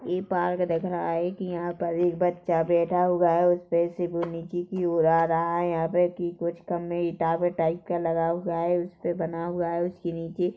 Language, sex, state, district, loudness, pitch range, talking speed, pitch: Hindi, female, Chhattisgarh, Korba, -26 LUFS, 170-175 Hz, 220 wpm, 175 Hz